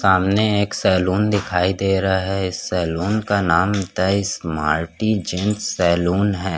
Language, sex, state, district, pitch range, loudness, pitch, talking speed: Hindi, male, Chhattisgarh, Korba, 90-100 Hz, -19 LUFS, 95 Hz, 125 wpm